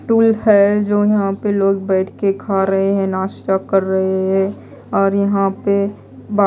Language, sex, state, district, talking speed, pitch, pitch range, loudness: Hindi, female, Odisha, Malkangiri, 175 wpm, 195 Hz, 195-205 Hz, -16 LUFS